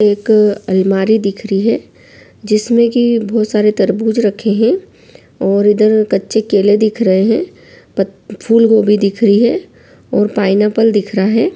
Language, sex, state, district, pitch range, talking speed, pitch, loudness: Hindi, female, Bihar, Saran, 200-225 Hz, 150 wpm, 210 Hz, -13 LUFS